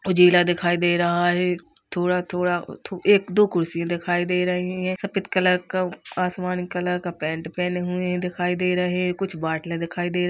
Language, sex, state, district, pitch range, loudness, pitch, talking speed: Hindi, female, Uttar Pradesh, Jalaun, 175-180 Hz, -23 LUFS, 180 Hz, 175 wpm